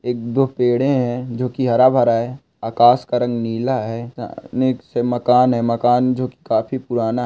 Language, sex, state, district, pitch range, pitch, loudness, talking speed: Hindi, male, Goa, North and South Goa, 120-130 Hz, 125 Hz, -18 LUFS, 165 wpm